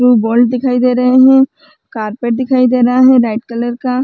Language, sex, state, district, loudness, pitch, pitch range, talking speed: Chhattisgarhi, female, Chhattisgarh, Raigarh, -11 LUFS, 250 Hz, 240-260 Hz, 225 wpm